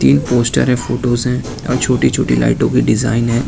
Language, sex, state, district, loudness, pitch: Hindi, male, Uttar Pradesh, Lucknow, -15 LUFS, 120 Hz